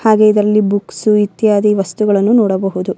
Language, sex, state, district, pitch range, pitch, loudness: Kannada, female, Karnataka, Bellary, 195-215 Hz, 210 Hz, -13 LUFS